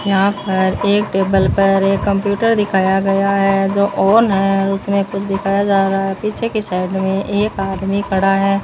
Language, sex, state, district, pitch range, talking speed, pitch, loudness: Hindi, female, Rajasthan, Bikaner, 195-200 Hz, 195 wpm, 195 Hz, -16 LUFS